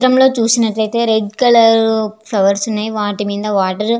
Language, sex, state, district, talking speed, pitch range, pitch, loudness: Telugu, female, Andhra Pradesh, Visakhapatnam, 195 wpm, 210-230 Hz, 220 Hz, -14 LUFS